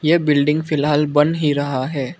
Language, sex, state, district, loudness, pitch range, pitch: Hindi, male, Arunachal Pradesh, Lower Dibang Valley, -18 LUFS, 145-155 Hz, 150 Hz